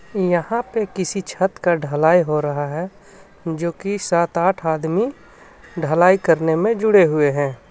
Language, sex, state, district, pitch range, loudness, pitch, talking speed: Hindi, male, Jharkhand, Ranchi, 160-195 Hz, -19 LUFS, 175 Hz, 155 wpm